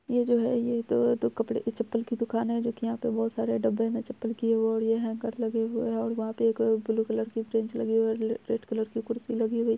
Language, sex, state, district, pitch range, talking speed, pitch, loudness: Hindi, female, Bihar, Araria, 225-230 Hz, 260 wpm, 225 Hz, -29 LUFS